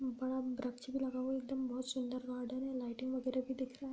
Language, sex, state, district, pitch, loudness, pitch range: Hindi, female, Bihar, Bhagalpur, 255 Hz, -40 LUFS, 255-260 Hz